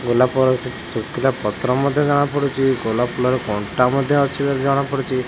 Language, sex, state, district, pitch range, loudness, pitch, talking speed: Odia, male, Odisha, Khordha, 125-140 Hz, -19 LUFS, 130 Hz, 170 wpm